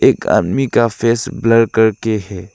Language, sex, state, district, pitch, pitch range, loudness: Hindi, male, Arunachal Pradesh, Lower Dibang Valley, 115 Hz, 110-115 Hz, -15 LUFS